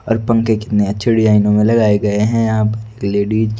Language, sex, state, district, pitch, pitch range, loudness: Hindi, male, Delhi, New Delhi, 110 Hz, 105-110 Hz, -15 LUFS